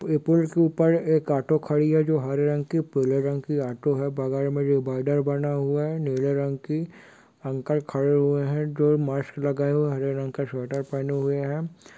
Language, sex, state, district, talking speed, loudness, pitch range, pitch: Hindi, male, Bihar, Kishanganj, 195 wpm, -25 LUFS, 140-150 Hz, 145 Hz